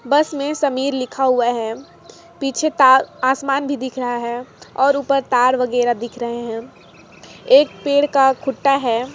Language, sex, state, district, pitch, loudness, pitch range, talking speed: Hindi, female, Jharkhand, Sahebganj, 265 Hz, -18 LUFS, 245-275 Hz, 145 wpm